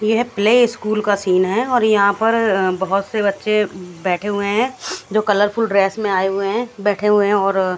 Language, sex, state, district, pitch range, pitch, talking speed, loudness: Hindi, female, Haryana, Jhajjar, 195-220 Hz, 205 Hz, 200 wpm, -17 LUFS